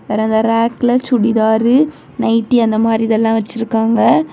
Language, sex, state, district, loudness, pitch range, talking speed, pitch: Tamil, female, Tamil Nadu, Kanyakumari, -14 LUFS, 220-240 Hz, 125 wpm, 225 Hz